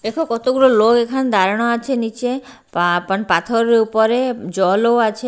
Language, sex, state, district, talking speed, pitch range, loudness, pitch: Bengali, female, Bihar, Katihar, 160 wpm, 205-250 Hz, -16 LUFS, 230 Hz